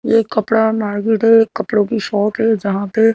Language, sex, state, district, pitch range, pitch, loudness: Hindi, female, Madhya Pradesh, Bhopal, 210-225 Hz, 220 Hz, -15 LUFS